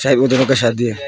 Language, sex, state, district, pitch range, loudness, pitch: Hindi, male, Arunachal Pradesh, Longding, 120-135 Hz, -14 LUFS, 130 Hz